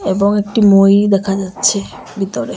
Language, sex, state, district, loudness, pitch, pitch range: Bengali, female, Assam, Hailakandi, -13 LUFS, 200 Hz, 195-205 Hz